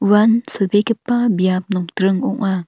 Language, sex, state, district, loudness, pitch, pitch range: Garo, female, Meghalaya, North Garo Hills, -17 LUFS, 205 Hz, 190-225 Hz